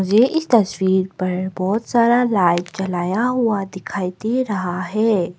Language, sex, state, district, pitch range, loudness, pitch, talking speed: Hindi, female, Arunachal Pradesh, Papum Pare, 185-230 Hz, -19 LUFS, 190 Hz, 145 wpm